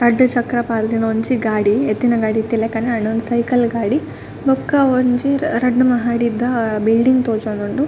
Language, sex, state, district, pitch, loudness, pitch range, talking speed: Tulu, female, Karnataka, Dakshina Kannada, 235 Hz, -17 LUFS, 225-250 Hz, 135 wpm